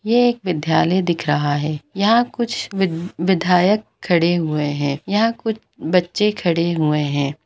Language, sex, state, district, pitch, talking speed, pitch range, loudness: Hindi, female, Bihar, Gaya, 175 Hz, 145 wpm, 155-210 Hz, -19 LUFS